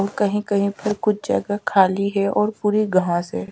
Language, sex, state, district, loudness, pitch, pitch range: Hindi, female, Chhattisgarh, Raipur, -20 LUFS, 200 Hz, 195-210 Hz